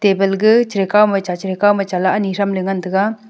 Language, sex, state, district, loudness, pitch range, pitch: Wancho, female, Arunachal Pradesh, Longding, -16 LUFS, 190-205 Hz, 195 Hz